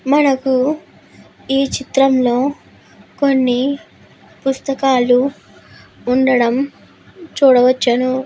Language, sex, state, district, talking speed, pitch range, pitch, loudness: Telugu, female, Andhra Pradesh, Guntur, 50 wpm, 255-275 Hz, 265 Hz, -15 LUFS